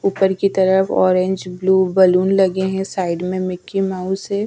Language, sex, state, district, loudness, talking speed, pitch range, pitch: Hindi, female, Bihar, Patna, -17 LUFS, 185 wpm, 185-195 Hz, 190 Hz